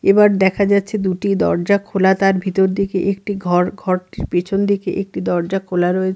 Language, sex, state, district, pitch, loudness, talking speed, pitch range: Bengali, female, Bihar, Katihar, 195 Hz, -17 LUFS, 165 wpm, 185-200 Hz